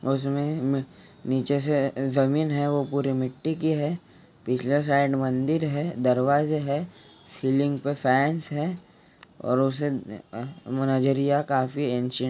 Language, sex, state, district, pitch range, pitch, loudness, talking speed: Hindi, male, Jharkhand, Jamtara, 130-145 Hz, 140 Hz, -25 LUFS, 115 wpm